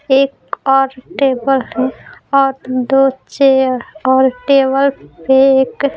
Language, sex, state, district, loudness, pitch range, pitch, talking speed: Hindi, female, Bihar, Patna, -14 LUFS, 260-275 Hz, 270 Hz, 120 wpm